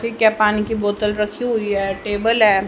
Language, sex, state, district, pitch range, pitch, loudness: Hindi, female, Haryana, Charkhi Dadri, 205-225 Hz, 210 Hz, -18 LUFS